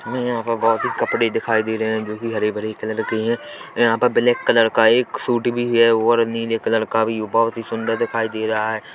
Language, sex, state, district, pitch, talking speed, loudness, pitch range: Hindi, male, Chhattisgarh, Korba, 115 Hz, 250 wpm, -19 LUFS, 110-115 Hz